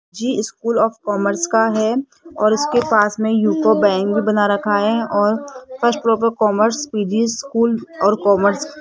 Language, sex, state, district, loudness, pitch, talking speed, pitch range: Hindi, female, Rajasthan, Jaipur, -17 LUFS, 220 Hz, 175 wpm, 210-235 Hz